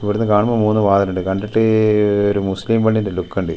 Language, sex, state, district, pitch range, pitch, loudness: Malayalam, male, Kerala, Wayanad, 95-110 Hz, 105 Hz, -16 LUFS